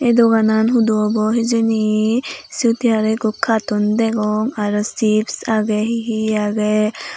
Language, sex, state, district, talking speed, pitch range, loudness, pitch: Chakma, female, Tripura, Unakoti, 140 wpm, 215-230 Hz, -17 LUFS, 220 Hz